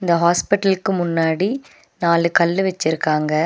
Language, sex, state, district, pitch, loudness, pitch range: Tamil, female, Tamil Nadu, Nilgiris, 170 Hz, -18 LUFS, 165-190 Hz